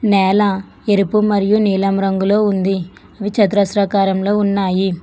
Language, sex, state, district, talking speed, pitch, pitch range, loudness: Telugu, female, Telangana, Hyderabad, 105 wpm, 200 Hz, 195-205 Hz, -16 LUFS